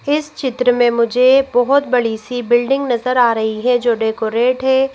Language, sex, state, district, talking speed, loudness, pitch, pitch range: Hindi, female, Madhya Pradesh, Bhopal, 180 wpm, -15 LUFS, 245 Hz, 235-265 Hz